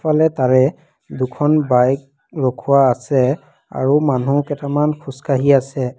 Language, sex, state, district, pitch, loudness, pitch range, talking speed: Assamese, female, Assam, Kamrup Metropolitan, 140 Hz, -17 LUFS, 130-145 Hz, 110 wpm